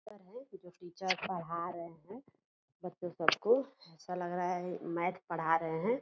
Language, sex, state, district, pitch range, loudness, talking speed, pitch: Angika, female, Bihar, Purnia, 170-190 Hz, -35 LUFS, 140 wpm, 180 Hz